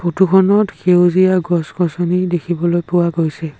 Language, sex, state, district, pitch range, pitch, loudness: Assamese, male, Assam, Sonitpur, 170-185 Hz, 175 Hz, -15 LUFS